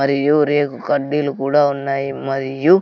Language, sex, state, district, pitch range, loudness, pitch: Telugu, male, Andhra Pradesh, Sri Satya Sai, 135-145 Hz, -18 LUFS, 140 Hz